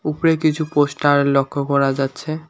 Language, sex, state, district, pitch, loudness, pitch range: Bengali, male, West Bengal, Alipurduar, 145 Hz, -18 LUFS, 140-155 Hz